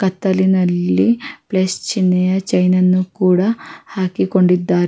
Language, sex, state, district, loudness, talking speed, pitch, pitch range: Kannada, female, Karnataka, Raichur, -16 LUFS, 75 wpm, 185 Hz, 180-190 Hz